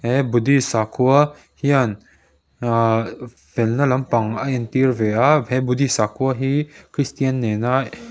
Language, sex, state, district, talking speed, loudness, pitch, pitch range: Mizo, male, Mizoram, Aizawl, 125 wpm, -19 LUFS, 130 Hz, 115-135 Hz